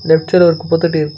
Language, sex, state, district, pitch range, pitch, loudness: Tamil, male, Karnataka, Bangalore, 160-170 Hz, 160 Hz, -13 LUFS